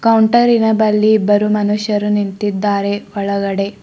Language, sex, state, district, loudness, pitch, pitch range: Kannada, female, Karnataka, Bidar, -15 LUFS, 210 Hz, 200-215 Hz